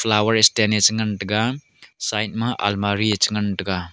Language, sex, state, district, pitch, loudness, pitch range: Wancho, male, Arunachal Pradesh, Longding, 105 Hz, -19 LUFS, 100-110 Hz